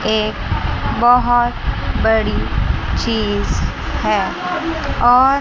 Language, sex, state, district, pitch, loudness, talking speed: Hindi, male, Chandigarh, Chandigarh, 215 Hz, -17 LUFS, 65 wpm